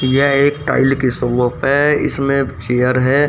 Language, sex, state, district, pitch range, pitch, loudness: Hindi, male, Haryana, Rohtak, 125-140 Hz, 135 Hz, -15 LUFS